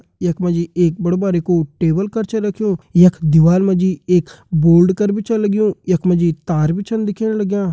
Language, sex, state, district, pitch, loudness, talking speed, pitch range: Hindi, male, Uttarakhand, Uttarkashi, 180 Hz, -16 LUFS, 210 wpm, 170-205 Hz